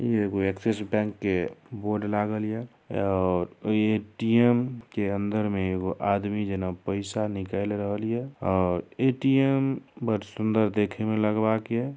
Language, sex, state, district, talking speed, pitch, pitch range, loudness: Maithili, male, Bihar, Darbhanga, 140 wpm, 105 Hz, 100-115 Hz, -27 LUFS